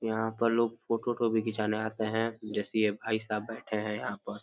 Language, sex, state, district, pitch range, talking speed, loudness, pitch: Hindi, male, Uttar Pradesh, Deoria, 110-115 Hz, 230 wpm, -31 LUFS, 110 Hz